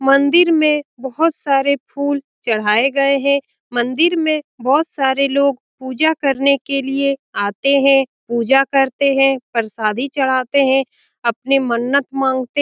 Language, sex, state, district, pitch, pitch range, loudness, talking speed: Hindi, female, Bihar, Lakhisarai, 275 Hz, 260-280 Hz, -16 LUFS, 140 wpm